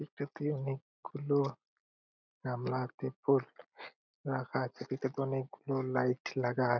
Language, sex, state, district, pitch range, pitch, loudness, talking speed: Bengali, male, West Bengal, Purulia, 130-140 Hz, 135 Hz, -35 LUFS, 105 wpm